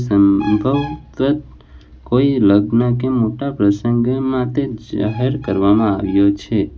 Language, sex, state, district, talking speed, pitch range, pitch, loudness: Gujarati, male, Gujarat, Valsad, 95 wpm, 100-130 Hz, 115 Hz, -16 LUFS